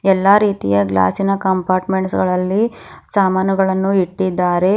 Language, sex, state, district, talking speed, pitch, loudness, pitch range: Kannada, female, Karnataka, Bidar, 115 wpm, 190 Hz, -16 LUFS, 185-195 Hz